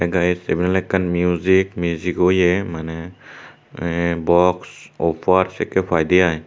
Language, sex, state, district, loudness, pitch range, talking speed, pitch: Chakma, male, Tripura, Dhalai, -19 LUFS, 85-90 Hz, 130 wpm, 90 Hz